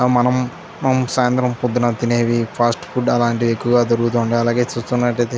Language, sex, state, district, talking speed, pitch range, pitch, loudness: Telugu, male, Andhra Pradesh, Chittoor, 145 wpm, 120-125 Hz, 120 Hz, -18 LUFS